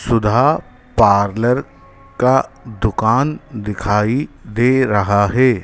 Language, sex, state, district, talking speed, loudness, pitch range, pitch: Hindi, male, Madhya Pradesh, Dhar, 85 wpm, -16 LUFS, 105-130 Hz, 115 Hz